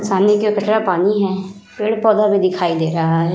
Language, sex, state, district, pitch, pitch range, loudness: Hindi, female, Uttar Pradesh, Budaun, 200 Hz, 180-210 Hz, -16 LUFS